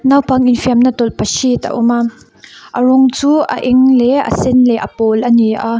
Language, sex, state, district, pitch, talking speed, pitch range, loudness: Mizo, female, Mizoram, Aizawl, 250 Hz, 205 wpm, 235-260 Hz, -12 LUFS